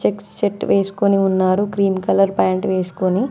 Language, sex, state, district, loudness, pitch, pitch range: Telugu, female, Telangana, Mahabubabad, -18 LUFS, 195 Hz, 185-195 Hz